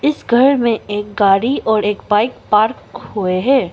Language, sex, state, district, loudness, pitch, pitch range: Hindi, female, Arunachal Pradesh, Longding, -15 LUFS, 215 Hz, 205-250 Hz